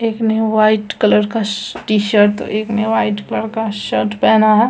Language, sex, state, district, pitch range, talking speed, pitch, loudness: Hindi, female, Bihar, Samastipur, 205-220 Hz, 190 wpm, 215 Hz, -15 LUFS